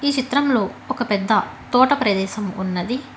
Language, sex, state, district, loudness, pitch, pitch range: Telugu, female, Telangana, Hyderabad, -20 LUFS, 240 Hz, 200-260 Hz